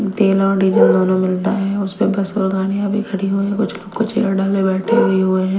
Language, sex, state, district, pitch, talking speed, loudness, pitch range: Hindi, female, Delhi, New Delhi, 195 Hz, 245 wpm, -17 LUFS, 190-205 Hz